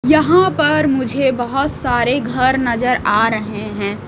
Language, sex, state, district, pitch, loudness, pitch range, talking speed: Hindi, female, Odisha, Malkangiri, 255 Hz, -16 LUFS, 240-280 Hz, 145 wpm